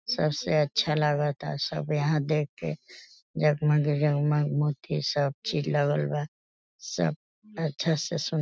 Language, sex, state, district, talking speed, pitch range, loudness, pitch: Bhojpuri, female, Uttar Pradesh, Deoria, 135 wpm, 145-155 Hz, -27 LUFS, 150 Hz